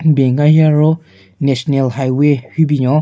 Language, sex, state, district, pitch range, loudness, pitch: Rengma, male, Nagaland, Kohima, 130-155 Hz, -13 LUFS, 145 Hz